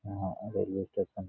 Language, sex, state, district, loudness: Hindi, male, Jharkhand, Jamtara, -35 LUFS